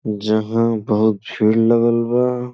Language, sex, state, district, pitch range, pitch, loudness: Bhojpuri, male, Uttar Pradesh, Gorakhpur, 110-115 Hz, 115 Hz, -17 LUFS